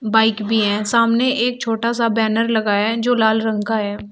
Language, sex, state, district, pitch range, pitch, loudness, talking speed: Hindi, female, Uttar Pradesh, Shamli, 215-230 Hz, 225 Hz, -18 LUFS, 220 wpm